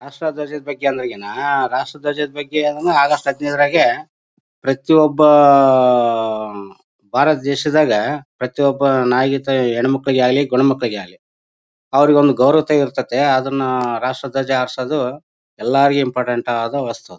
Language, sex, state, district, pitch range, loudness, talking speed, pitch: Kannada, male, Karnataka, Bellary, 125-145 Hz, -16 LUFS, 125 wpm, 135 Hz